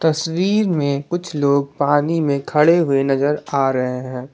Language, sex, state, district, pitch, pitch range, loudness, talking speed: Hindi, male, Jharkhand, Garhwa, 145 Hz, 140-160 Hz, -18 LUFS, 165 wpm